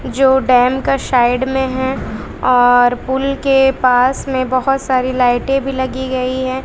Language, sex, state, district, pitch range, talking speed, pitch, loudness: Hindi, female, Bihar, West Champaran, 250-265 Hz, 160 wpm, 260 Hz, -14 LUFS